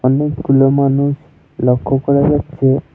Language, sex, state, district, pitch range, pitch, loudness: Bengali, male, West Bengal, Alipurduar, 135-145 Hz, 140 Hz, -14 LUFS